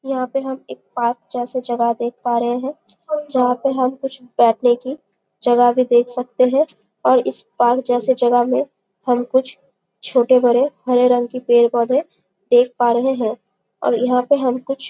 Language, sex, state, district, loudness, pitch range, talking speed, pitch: Hindi, female, Chhattisgarh, Bastar, -18 LUFS, 240-265 Hz, 185 wpm, 245 Hz